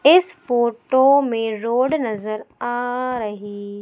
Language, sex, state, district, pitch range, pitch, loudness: Hindi, female, Madhya Pradesh, Umaria, 215-260 Hz, 240 Hz, -20 LUFS